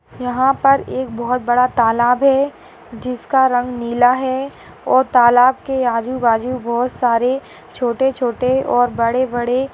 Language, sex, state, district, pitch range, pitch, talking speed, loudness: Hindi, female, Bihar, Madhepura, 240-260 Hz, 250 Hz, 130 wpm, -16 LUFS